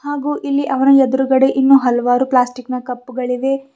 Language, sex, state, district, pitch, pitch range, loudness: Kannada, female, Karnataka, Bidar, 265 Hz, 250-275 Hz, -15 LUFS